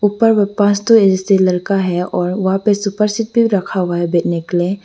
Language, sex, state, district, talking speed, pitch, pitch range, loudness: Hindi, female, Arunachal Pradesh, Lower Dibang Valley, 200 wpm, 195 Hz, 180-210 Hz, -15 LUFS